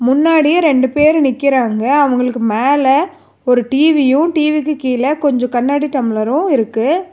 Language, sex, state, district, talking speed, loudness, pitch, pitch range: Tamil, female, Tamil Nadu, Nilgiris, 120 wpm, -13 LUFS, 275 Hz, 250-300 Hz